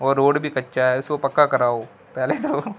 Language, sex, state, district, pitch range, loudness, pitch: Hindi, male, Punjab, Fazilka, 130-145 Hz, -21 LUFS, 135 Hz